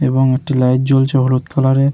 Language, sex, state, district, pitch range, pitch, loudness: Bengali, male, West Bengal, Jalpaiguri, 130-135 Hz, 135 Hz, -14 LUFS